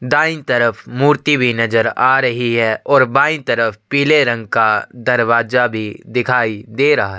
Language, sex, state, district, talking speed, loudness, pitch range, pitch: Hindi, male, Chhattisgarh, Sukma, 165 wpm, -15 LUFS, 115-130 Hz, 120 Hz